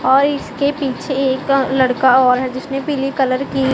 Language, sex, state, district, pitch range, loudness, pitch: Hindi, female, Punjab, Pathankot, 260-275 Hz, -16 LUFS, 265 Hz